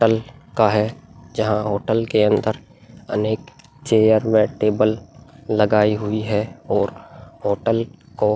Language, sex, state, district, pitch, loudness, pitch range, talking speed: Hindi, male, Uttar Pradesh, Muzaffarnagar, 110 Hz, -20 LUFS, 105-115 Hz, 130 wpm